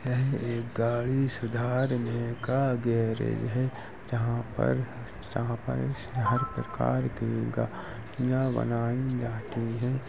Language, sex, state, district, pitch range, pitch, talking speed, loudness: Hindi, male, Uttar Pradesh, Jalaun, 115-130 Hz, 120 Hz, 95 wpm, -30 LUFS